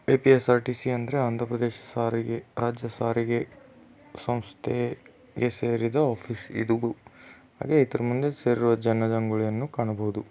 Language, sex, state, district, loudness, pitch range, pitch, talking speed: Kannada, male, Karnataka, Belgaum, -26 LUFS, 115-125 Hz, 120 Hz, 105 wpm